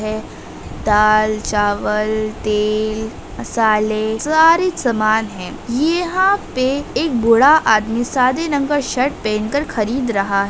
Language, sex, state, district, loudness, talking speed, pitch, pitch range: Hindi, female, Bihar, Begusarai, -16 LUFS, 120 wpm, 225 Hz, 215-280 Hz